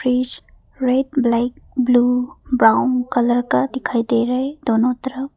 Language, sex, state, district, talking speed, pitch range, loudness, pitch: Hindi, female, Arunachal Pradesh, Papum Pare, 145 wpm, 240-260 Hz, -18 LUFS, 250 Hz